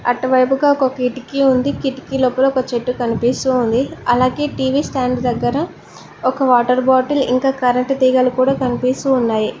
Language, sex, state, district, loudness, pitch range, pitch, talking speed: Telugu, female, Telangana, Mahabubabad, -16 LUFS, 250-270 Hz, 255 Hz, 145 wpm